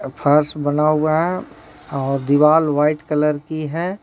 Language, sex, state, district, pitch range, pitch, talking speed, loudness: Hindi, male, Jharkhand, Ranchi, 145-155 Hz, 150 Hz, 150 wpm, -18 LUFS